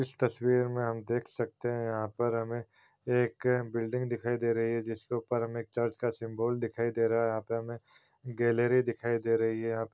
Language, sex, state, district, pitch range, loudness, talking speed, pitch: Hindi, male, Chhattisgarh, Raigarh, 115-120 Hz, -32 LUFS, 205 wpm, 115 Hz